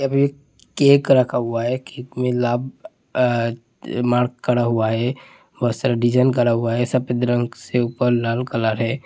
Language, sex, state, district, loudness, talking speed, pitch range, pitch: Hindi, male, Uttar Pradesh, Hamirpur, -20 LUFS, 180 wpm, 120-130 Hz, 120 Hz